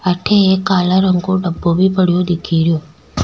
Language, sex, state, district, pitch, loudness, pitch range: Rajasthani, female, Rajasthan, Nagaur, 180 Hz, -14 LUFS, 170-190 Hz